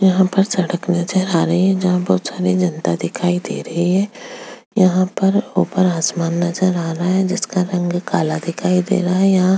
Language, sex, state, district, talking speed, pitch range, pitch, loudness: Hindi, female, Chhattisgarh, Jashpur, 190 wpm, 175-190 Hz, 180 Hz, -17 LUFS